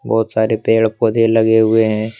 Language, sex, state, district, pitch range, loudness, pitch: Hindi, male, Jharkhand, Deoghar, 110-115 Hz, -14 LUFS, 110 Hz